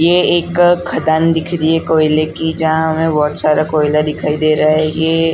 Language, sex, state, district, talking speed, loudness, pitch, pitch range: Hindi, male, Maharashtra, Gondia, 200 wpm, -14 LUFS, 160 Hz, 155-165 Hz